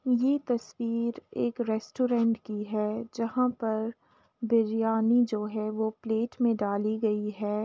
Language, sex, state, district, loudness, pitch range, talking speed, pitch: Hindi, female, Uttar Pradesh, Jalaun, -29 LUFS, 215-235 Hz, 135 wpm, 225 Hz